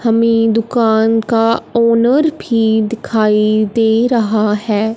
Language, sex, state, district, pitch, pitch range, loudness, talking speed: Hindi, male, Punjab, Fazilka, 225 Hz, 220-230 Hz, -13 LUFS, 110 wpm